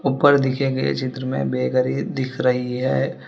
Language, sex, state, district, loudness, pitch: Hindi, female, Telangana, Hyderabad, -21 LUFS, 130 Hz